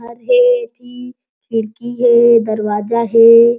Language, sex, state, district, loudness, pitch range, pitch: Chhattisgarhi, female, Chhattisgarh, Jashpur, -13 LUFS, 230-245 Hz, 235 Hz